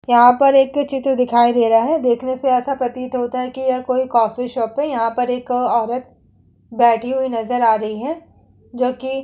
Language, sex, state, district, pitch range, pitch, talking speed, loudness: Hindi, female, Uttar Pradesh, Muzaffarnagar, 240-260 Hz, 250 Hz, 210 wpm, -17 LUFS